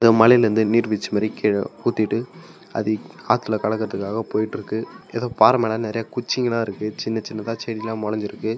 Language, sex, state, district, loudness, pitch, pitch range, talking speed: Tamil, male, Tamil Nadu, Namakkal, -22 LUFS, 110 Hz, 110-115 Hz, 145 wpm